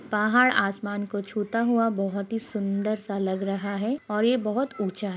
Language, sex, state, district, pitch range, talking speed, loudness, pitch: Hindi, female, Bihar, Jamui, 200-230 Hz, 195 wpm, -26 LUFS, 210 Hz